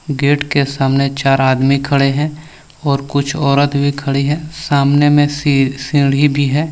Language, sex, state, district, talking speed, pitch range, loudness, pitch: Hindi, male, Jharkhand, Deoghar, 170 wpm, 140-145 Hz, -14 LUFS, 140 Hz